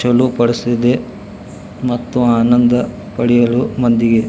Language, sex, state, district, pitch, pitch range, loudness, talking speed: Kannada, male, Karnataka, Belgaum, 120 Hz, 120-125 Hz, -14 LUFS, 85 wpm